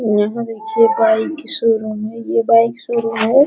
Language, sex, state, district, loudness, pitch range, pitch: Hindi, female, Bihar, Araria, -16 LUFS, 220-235 Hz, 225 Hz